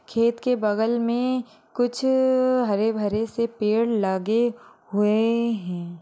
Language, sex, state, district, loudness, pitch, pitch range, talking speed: Hindi, female, Maharashtra, Solapur, -23 LUFS, 230 Hz, 210-240 Hz, 120 wpm